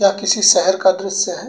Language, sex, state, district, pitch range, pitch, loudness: Bhojpuri, male, Uttar Pradesh, Gorakhpur, 190-200 Hz, 195 Hz, -14 LUFS